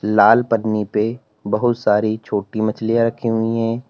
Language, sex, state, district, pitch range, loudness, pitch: Hindi, male, Uttar Pradesh, Lalitpur, 105-115 Hz, -18 LUFS, 110 Hz